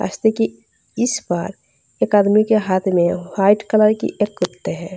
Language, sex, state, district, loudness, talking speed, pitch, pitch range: Hindi, female, Bihar, Darbhanga, -18 LUFS, 180 wpm, 200 Hz, 180-215 Hz